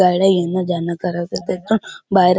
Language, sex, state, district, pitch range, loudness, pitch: Marathi, male, Maharashtra, Chandrapur, 175-190 Hz, -18 LUFS, 180 Hz